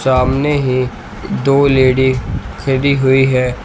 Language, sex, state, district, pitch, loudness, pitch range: Hindi, male, Uttar Pradesh, Shamli, 130 Hz, -14 LUFS, 130-135 Hz